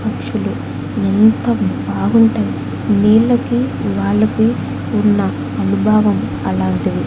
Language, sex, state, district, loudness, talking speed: Telugu, female, Andhra Pradesh, Annamaya, -15 LUFS, 70 wpm